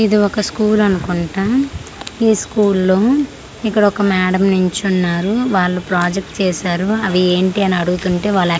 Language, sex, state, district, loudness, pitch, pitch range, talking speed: Telugu, female, Andhra Pradesh, Manyam, -16 LUFS, 195 Hz, 180-210 Hz, 120 wpm